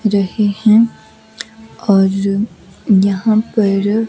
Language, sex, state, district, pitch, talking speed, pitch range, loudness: Hindi, female, Himachal Pradesh, Shimla, 210 Hz, 60 wpm, 200-220 Hz, -14 LUFS